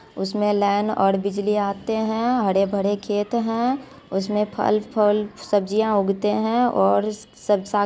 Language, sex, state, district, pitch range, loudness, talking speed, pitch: Maithili, female, Bihar, Supaul, 200-220 Hz, -22 LUFS, 145 wpm, 210 Hz